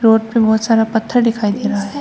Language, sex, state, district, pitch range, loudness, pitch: Hindi, female, Assam, Hailakandi, 220-230 Hz, -15 LUFS, 225 Hz